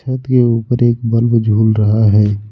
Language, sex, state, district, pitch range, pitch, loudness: Hindi, male, Jharkhand, Ranchi, 105-120 Hz, 115 Hz, -13 LUFS